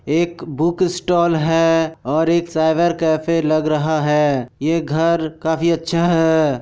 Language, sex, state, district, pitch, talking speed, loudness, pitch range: Hindi, male, Bihar, Kishanganj, 160 Hz, 145 wpm, -17 LUFS, 155-170 Hz